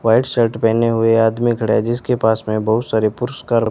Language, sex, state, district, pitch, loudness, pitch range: Hindi, male, Rajasthan, Bikaner, 115 Hz, -17 LUFS, 110-120 Hz